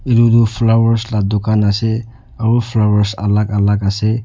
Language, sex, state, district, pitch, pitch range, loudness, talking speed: Nagamese, male, Nagaland, Dimapur, 110 Hz, 105-115 Hz, -15 LUFS, 155 wpm